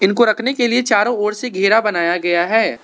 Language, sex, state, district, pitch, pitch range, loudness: Hindi, male, Arunachal Pradesh, Lower Dibang Valley, 210 Hz, 190-235 Hz, -16 LUFS